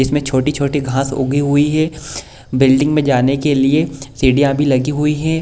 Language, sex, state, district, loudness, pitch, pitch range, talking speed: Hindi, male, Bihar, Kishanganj, -15 LUFS, 140 Hz, 135-150 Hz, 175 wpm